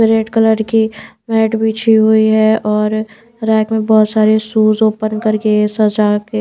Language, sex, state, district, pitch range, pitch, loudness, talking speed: Hindi, female, Bihar, Patna, 215-220 Hz, 220 Hz, -13 LUFS, 160 wpm